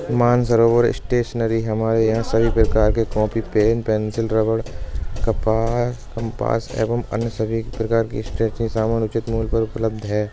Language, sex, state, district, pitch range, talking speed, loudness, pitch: Bundeli, male, Uttar Pradesh, Budaun, 110-115 Hz, 145 wpm, -20 LUFS, 115 Hz